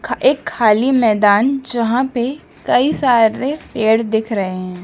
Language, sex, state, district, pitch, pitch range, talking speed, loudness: Hindi, female, Madhya Pradesh, Dhar, 230 Hz, 215-260 Hz, 135 wpm, -16 LUFS